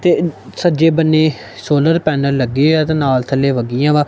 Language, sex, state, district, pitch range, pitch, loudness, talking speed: Punjabi, male, Punjab, Kapurthala, 130-160 Hz, 150 Hz, -15 LUFS, 160 wpm